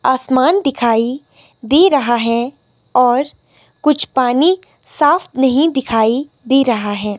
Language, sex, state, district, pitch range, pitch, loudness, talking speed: Hindi, female, Himachal Pradesh, Shimla, 240-290 Hz, 260 Hz, -14 LUFS, 115 wpm